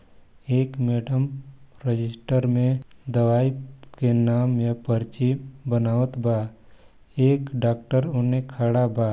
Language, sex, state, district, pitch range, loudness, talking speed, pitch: Hindi, male, Chhattisgarh, Balrampur, 115-130 Hz, -24 LUFS, 105 wpm, 125 Hz